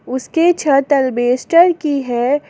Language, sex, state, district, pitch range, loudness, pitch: Hindi, female, Jharkhand, Garhwa, 255-325 Hz, -14 LUFS, 280 Hz